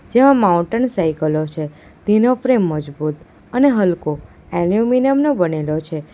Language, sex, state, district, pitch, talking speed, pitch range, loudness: Gujarati, female, Gujarat, Valsad, 175 Hz, 125 wpm, 155-250 Hz, -17 LUFS